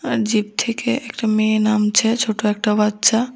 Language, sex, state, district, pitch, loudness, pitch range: Bengali, female, Tripura, West Tripura, 220 Hz, -18 LUFS, 210-230 Hz